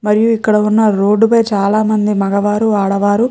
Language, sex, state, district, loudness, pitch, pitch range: Telugu, female, Andhra Pradesh, Chittoor, -13 LUFS, 210 Hz, 205-220 Hz